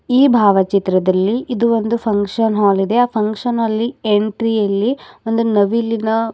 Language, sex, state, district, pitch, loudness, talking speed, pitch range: Kannada, female, Karnataka, Bidar, 220 Hz, -16 LUFS, 150 wpm, 205-230 Hz